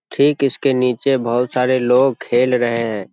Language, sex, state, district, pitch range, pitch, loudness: Hindi, male, Bihar, Jamui, 120-135 Hz, 125 Hz, -17 LUFS